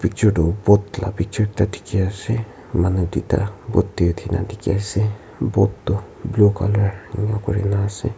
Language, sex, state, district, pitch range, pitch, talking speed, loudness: Nagamese, male, Nagaland, Kohima, 95-105 Hz, 100 Hz, 170 wpm, -20 LUFS